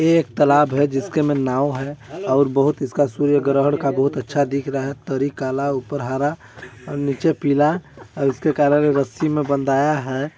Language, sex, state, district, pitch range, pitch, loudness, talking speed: Hindi, male, Chhattisgarh, Balrampur, 135-145 Hz, 140 Hz, -20 LUFS, 185 wpm